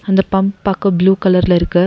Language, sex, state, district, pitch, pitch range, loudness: Tamil, female, Tamil Nadu, Nilgiris, 195 Hz, 185-195 Hz, -14 LUFS